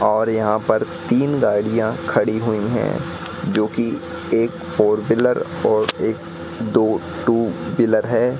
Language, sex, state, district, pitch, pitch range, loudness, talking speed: Hindi, male, Madhya Pradesh, Katni, 115 Hz, 110-120 Hz, -19 LUFS, 130 wpm